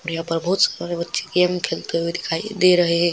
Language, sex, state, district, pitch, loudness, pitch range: Hindi, female, Bihar, Vaishali, 170 Hz, -20 LUFS, 165-180 Hz